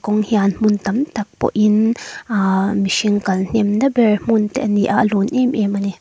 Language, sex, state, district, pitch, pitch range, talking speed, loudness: Mizo, female, Mizoram, Aizawl, 210 Hz, 200-225 Hz, 220 wpm, -17 LUFS